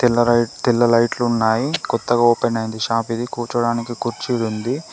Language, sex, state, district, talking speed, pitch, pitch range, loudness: Telugu, male, Telangana, Komaram Bheem, 170 wpm, 120 Hz, 115-120 Hz, -19 LUFS